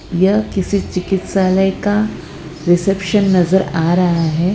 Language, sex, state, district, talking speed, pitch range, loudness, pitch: Hindi, female, Gujarat, Valsad, 120 wpm, 175-195 Hz, -15 LUFS, 190 Hz